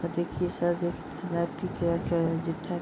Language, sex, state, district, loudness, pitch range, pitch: Bhojpuri, female, Bihar, East Champaran, -30 LUFS, 165-175 Hz, 170 Hz